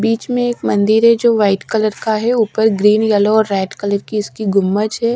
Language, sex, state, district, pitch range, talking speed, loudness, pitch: Hindi, female, Odisha, Sambalpur, 205-225 Hz, 235 wpm, -15 LUFS, 215 Hz